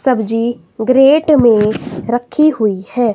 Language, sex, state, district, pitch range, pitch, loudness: Hindi, female, Himachal Pradesh, Shimla, 220-260 Hz, 240 Hz, -13 LUFS